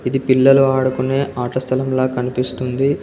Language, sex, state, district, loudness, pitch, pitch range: Telugu, male, Telangana, Komaram Bheem, -17 LUFS, 130 Hz, 130-135 Hz